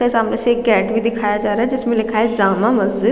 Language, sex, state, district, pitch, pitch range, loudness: Hindi, female, Chhattisgarh, Raigarh, 225 Hz, 210-235 Hz, -16 LUFS